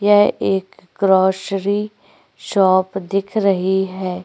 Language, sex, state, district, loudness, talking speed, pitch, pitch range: Hindi, female, Uttar Pradesh, Jyotiba Phule Nagar, -18 LUFS, 100 wpm, 195 Hz, 190-200 Hz